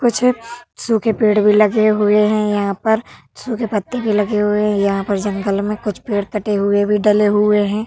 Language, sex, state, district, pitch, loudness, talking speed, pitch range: Hindi, female, Uttar Pradesh, Hamirpur, 210 Hz, -16 LUFS, 205 wpm, 205-220 Hz